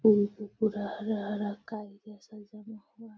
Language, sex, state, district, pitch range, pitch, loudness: Hindi, female, Bihar, Gaya, 205-220 Hz, 210 Hz, -32 LUFS